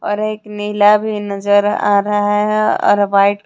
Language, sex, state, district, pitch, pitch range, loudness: Hindi, female, Jharkhand, Deoghar, 205 Hz, 205-210 Hz, -15 LUFS